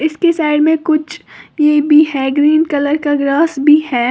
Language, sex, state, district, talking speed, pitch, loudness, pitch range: Hindi, female, Uttar Pradesh, Lalitpur, 190 wpm, 300 Hz, -12 LUFS, 290-310 Hz